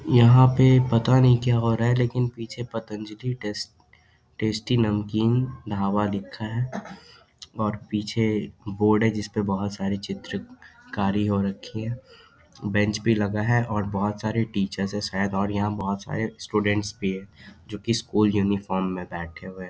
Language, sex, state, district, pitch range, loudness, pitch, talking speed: Hindi, male, Bihar, Darbhanga, 100-115 Hz, -24 LUFS, 105 Hz, 165 wpm